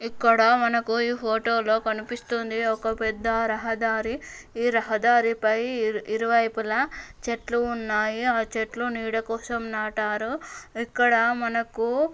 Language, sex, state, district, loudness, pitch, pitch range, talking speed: Telugu, female, Telangana, Nalgonda, -25 LUFS, 230 Hz, 220-235 Hz, 110 wpm